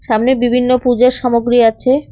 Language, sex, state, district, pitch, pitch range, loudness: Bengali, female, West Bengal, Cooch Behar, 245 Hz, 240-255 Hz, -13 LUFS